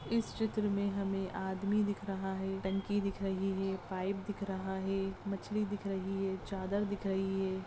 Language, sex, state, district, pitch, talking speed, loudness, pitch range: Hindi, female, Maharashtra, Aurangabad, 195 Hz, 185 wpm, -36 LUFS, 190-200 Hz